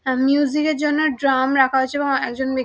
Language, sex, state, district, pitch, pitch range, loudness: Bengali, female, West Bengal, Dakshin Dinajpur, 270 Hz, 265-290 Hz, -19 LUFS